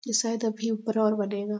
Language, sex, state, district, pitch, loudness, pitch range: Hindi, male, Chhattisgarh, Bastar, 220 Hz, -27 LUFS, 210-230 Hz